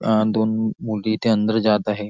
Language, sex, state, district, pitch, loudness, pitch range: Marathi, male, Maharashtra, Nagpur, 110 Hz, -20 LUFS, 105-110 Hz